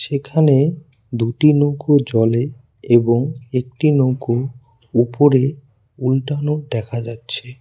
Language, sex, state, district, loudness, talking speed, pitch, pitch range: Bengali, male, West Bengal, Cooch Behar, -17 LUFS, 85 wpm, 130 Hz, 120-145 Hz